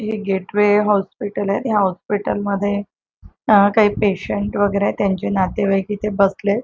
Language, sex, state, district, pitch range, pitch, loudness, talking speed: Marathi, female, Maharashtra, Chandrapur, 200-205 Hz, 205 Hz, -18 LUFS, 125 wpm